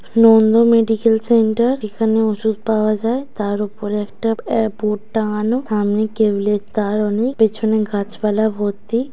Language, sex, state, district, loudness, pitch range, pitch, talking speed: Bengali, female, West Bengal, Dakshin Dinajpur, -17 LUFS, 210-225 Hz, 220 Hz, 150 wpm